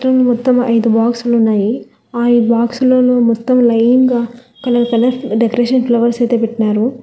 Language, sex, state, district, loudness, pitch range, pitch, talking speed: Telugu, female, Telangana, Hyderabad, -13 LUFS, 230-250 Hz, 240 Hz, 135 wpm